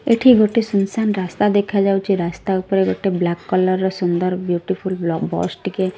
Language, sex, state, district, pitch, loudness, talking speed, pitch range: Odia, female, Odisha, Malkangiri, 190 Hz, -18 LUFS, 150 wpm, 185-205 Hz